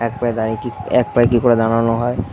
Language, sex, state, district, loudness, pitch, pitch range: Bengali, male, West Bengal, Jhargram, -17 LUFS, 115 Hz, 115-120 Hz